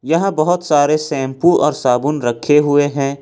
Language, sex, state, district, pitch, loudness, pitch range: Hindi, male, Jharkhand, Ranchi, 145 Hz, -15 LUFS, 140-155 Hz